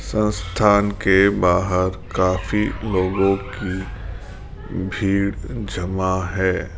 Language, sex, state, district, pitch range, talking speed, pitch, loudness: Hindi, male, Rajasthan, Jaipur, 95-100 Hz, 80 wpm, 95 Hz, -20 LUFS